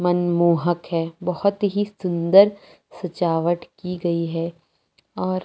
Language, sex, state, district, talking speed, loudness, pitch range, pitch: Hindi, female, Chhattisgarh, Jashpur, 110 wpm, -21 LUFS, 170-185 Hz, 175 Hz